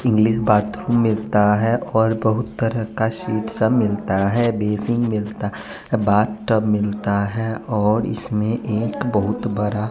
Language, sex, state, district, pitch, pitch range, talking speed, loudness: Hindi, male, Bihar, West Champaran, 110 Hz, 105-115 Hz, 140 wpm, -20 LUFS